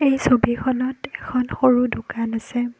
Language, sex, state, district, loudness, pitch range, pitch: Assamese, female, Assam, Kamrup Metropolitan, -21 LUFS, 240-255 Hz, 250 Hz